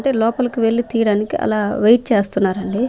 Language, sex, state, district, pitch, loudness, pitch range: Telugu, female, Andhra Pradesh, Manyam, 225 Hz, -17 LUFS, 210-240 Hz